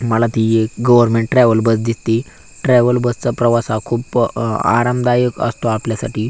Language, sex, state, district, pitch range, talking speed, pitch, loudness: Marathi, male, Maharashtra, Aurangabad, 115-120 Hz, 160 wpm, 115 Hz, -15 LUFS